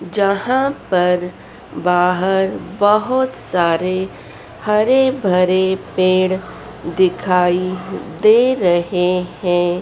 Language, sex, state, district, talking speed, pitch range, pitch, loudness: Hindi, female, Madhya Pradesh, Dhar, 75 wpm, 180-205 Hz, 185 Hz, -16 LUFS